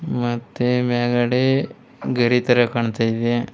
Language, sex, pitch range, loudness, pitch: Kannada, male, 120-125 Hz, -20 LUFS, 120 Hz